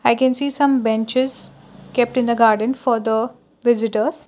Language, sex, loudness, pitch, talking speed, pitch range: English, female, -19 LUFS, 240 Hz, 170 wpm, 225-260 Hz